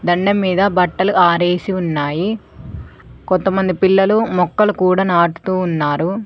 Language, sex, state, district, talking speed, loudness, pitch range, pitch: Telugu, female, Telangana, Mahabubabad, 105 wpm, -15 LUFS, 175-195 Hz, 185 Hz